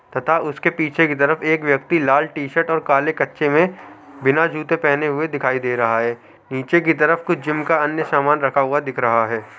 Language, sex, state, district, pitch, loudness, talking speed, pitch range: Hindi, male, Uttar Pradesh, Hamirpur, 150 Hz, -18 LUFS, 215 wpm, 135-160 Hz